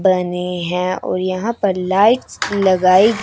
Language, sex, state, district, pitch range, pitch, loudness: Hindi, female, Chandigarh, Chandigarh, 180-200 Hz, 185 Hz, -16 LUFS